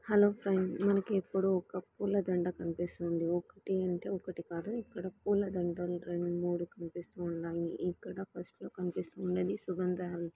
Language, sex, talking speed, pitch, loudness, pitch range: Telugu, female, 115 wpm, 180 Hz, -35 LUFS, 175-190 Hz